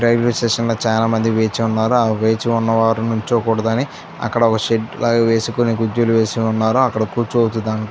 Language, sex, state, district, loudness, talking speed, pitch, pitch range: Telugu, male, Andhra Pradesh, Chittoor, -17 LUFS, 165 wpm, 115 Hz, 110-115 Hz